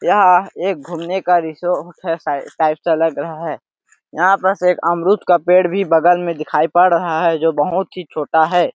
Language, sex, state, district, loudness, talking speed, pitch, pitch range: Hindi, male, Chhattisgarh, Sarguja, -16 LUFS, 205 wpm, 175 Hz, 160-180 Hz